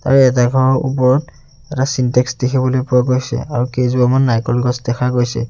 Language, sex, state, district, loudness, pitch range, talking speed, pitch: Assamese, male, Assam, Sonitpur, -15 LUFS, 125-130 Hz, 155 wpm, 125 Hz